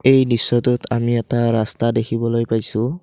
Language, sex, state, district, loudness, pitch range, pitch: Assamese, male, Assam, Kamrup Metropolitan, -18 LUFS, 115-125 Hz, 120 Hz